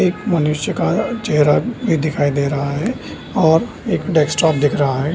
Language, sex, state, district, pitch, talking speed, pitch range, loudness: Hindi, male, Bihar, Samastipur, 155 Hz, 165 wpm, 145-175 Hz, -17 LUFS